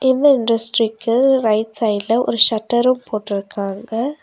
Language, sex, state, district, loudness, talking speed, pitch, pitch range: Tamil, female, Tamil Nadu, Nilgiris, -17 LUFS, 100 wpm, 230 Hz, 215-250 Hz